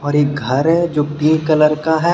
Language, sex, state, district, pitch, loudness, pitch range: Hindi, male, Jharkhand, Deoghar, 150 Hz, -15 LUFS, 145-160 Hz